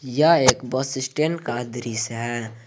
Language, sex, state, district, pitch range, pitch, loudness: Hindi, male, Jharkhand, Garhwa, 120-135 Hz, 125 Hz, -22 LUFS